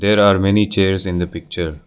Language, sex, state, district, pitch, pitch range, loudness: English, male, Arunachal Pradesh, Lower Dibang Valley, 95 Hz, 90-100 Hz, -16 LUFS